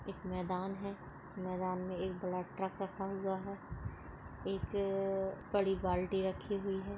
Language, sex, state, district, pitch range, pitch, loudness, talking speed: Hindi, female, Rajasthan, Churu, 180-195 Hz, 190 Hz, -39 LUFS, 145 wpm